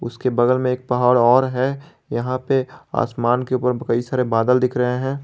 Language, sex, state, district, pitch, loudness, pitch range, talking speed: Hindi, male, Jharkhand, Garhwa, 125 Hz, -19 LUFS, 125-130 Hz, 205 wpm